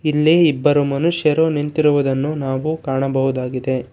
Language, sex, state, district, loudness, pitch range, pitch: Kannada, male, Karnataka, Bangalore, -17 LUFS, 135-155 Hz, 145 Hz